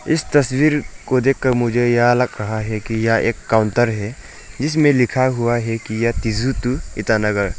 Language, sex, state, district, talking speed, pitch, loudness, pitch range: Hindi, male, Arunachal Pradesh, Lower Dibang Valley, 175 wpm, 120 Hz, -18 LUFS, 110-130 Hz